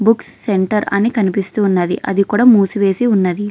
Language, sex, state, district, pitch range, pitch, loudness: Telugu, female, Andhra Pradesh, Krishna, 195-215 Hz, 200 Hz, -15 LUFS